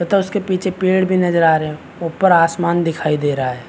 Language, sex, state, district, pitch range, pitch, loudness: Hindi, male, Chhattisgarh, Bastar, 155-185 Hz, 170 Hz, -16 LUFS